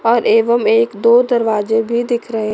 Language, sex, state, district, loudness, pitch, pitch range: Hindi, female, Chandigarh, Chandigarh, -14 LUFS, 230 Hz, 220-235 Hz